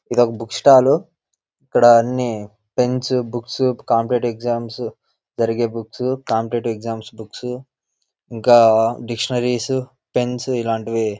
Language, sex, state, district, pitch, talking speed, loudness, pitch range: Telugu, male, Andhra Pradesh, Visakhapatnam, 120 Hz, 105 wpm, -18 LUFS, 115-125 Hz